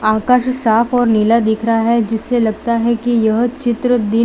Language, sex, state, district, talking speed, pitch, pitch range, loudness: Hindi, female, Gujarat, Valsad, 210 wpm, 230 Hz, 220-240 Hz, -15 LUFS